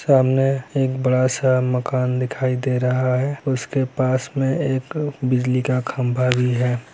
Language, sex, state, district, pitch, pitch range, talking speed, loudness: Hindi, male, Bihar, Lakhisarai, 130 Hz, 125-135 Hz, 165 wpm, -20 LUFS